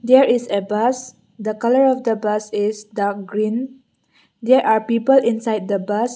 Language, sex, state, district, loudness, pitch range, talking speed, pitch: English, female, Mizoram, Aizawl, -18 LUFS, 210-250 Hz, 175 wpm, 225 Hz